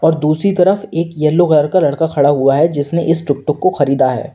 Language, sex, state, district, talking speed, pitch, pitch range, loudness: Hindi, male, Uttar Pradesh, Lalitpur, 220 wpm, 160 Hz, 145-170 Hz, -14 LUFS